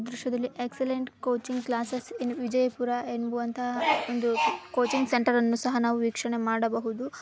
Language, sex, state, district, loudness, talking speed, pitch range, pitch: Kannada, female, Karnataka, Bijapur, -28 LUFS, 135 wpm, 235-255 Hz, 245 Hz